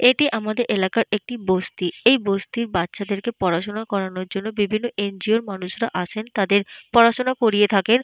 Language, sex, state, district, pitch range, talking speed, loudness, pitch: Bengali, female, Jharkhand, Jamtara, 195-230 Hz, 150 wpm, -21 LUFS, 210 Hz